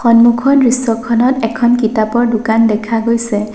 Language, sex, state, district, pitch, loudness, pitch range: Assamese, female, Assam, Sonitpur, 230 Hz, -12 LUFS, 225-240 Hz